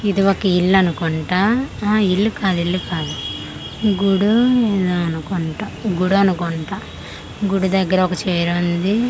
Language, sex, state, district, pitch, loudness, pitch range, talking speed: Telugu, female, Andhra Pradesh, Manyam, 190 Hz, -18 LUFS, 175-200 Hz, 130 wpm